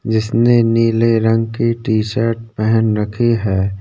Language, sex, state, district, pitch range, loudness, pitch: Hindi, male, Uttarakhand, Tehri Garhwal, 110-115 Hz, -15 LUFS, 115 Hz